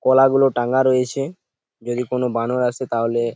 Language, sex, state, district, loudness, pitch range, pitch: Bengali, male, West Bengal, Purulia, -19 LUFS, 120-130 Hz, 125 Hz